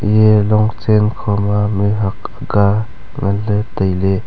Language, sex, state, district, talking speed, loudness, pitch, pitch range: Wancho, male, Arunachal Pradesh, Longding, 100 wpm, -15 LUFS, 105 Hz, 100-105 Hz